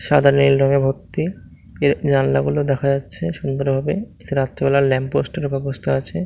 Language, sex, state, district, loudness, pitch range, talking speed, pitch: Bengali, male, West Bengal, Malda, -19 LUFS, 135-140 Hz, 155 wpm, 135 Hz